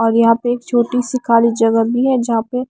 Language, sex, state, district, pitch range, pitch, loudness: Hindi, female, Maharashtra, Mumbai Suburban, 230-250 Hz, 235 Hz, -15 LUFS